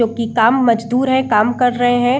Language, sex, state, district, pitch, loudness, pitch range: Hindi, female, Bihar, Saran, 245 Hz, -15 LUFS, 230-250 Hz